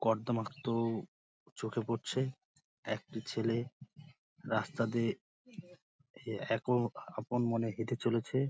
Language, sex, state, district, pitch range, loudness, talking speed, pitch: Bengali, male, West Bengal, Dakshin Dinajpur, 115-130 Hz, -36 LUFS, 90 wpm, 115 Hz